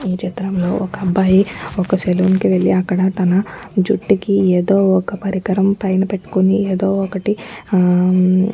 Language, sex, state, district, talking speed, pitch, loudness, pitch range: Telugu, female, Andhra Pradesh, Anantapur, 140 wpm, 190 Hz, -16 LUFS, 185-195 Hz